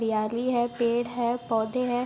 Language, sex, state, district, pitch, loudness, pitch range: Hindi, female, Bihar, Begusarai, 240 Hz, -27 LUFS, 225-245 Hz